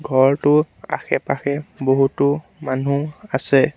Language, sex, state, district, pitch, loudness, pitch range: Assamese, male, Assam, Sonitpur, 140 Hz, -19 LUFS, 135-150 Hz